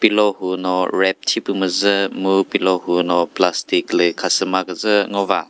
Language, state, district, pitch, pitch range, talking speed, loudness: Chakhesang, Nagaland, Dimapur, 95 Hz, 90-100 Hz, 140 wpm, -18 LUFS